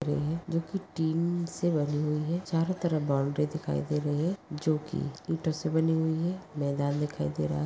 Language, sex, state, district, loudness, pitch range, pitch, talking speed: Hindi, female, Maharashtra, Pune, -30 LUFS, 150-165 Hz, 155 Hz, 195 wpm